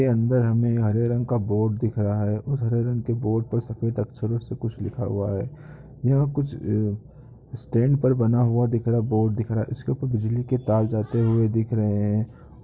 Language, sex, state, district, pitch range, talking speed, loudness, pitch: Hindi, male, Chhattisgarh, Rajnandgaon, 110-125 Hz, 220 wpm, -24 LUFS, 115 Hz